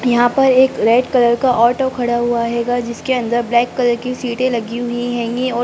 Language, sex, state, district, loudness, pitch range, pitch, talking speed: Hindi, female, Bihar, Sitamarhi, -16 LUFS, 235-250 Hz, 240 Hz, 210 wpm